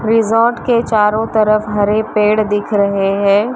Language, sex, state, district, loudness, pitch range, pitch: Hindi, female, Maharashtra, Mumbai Suburban, -14 LUFS, 205-225 Hz, 215 Hz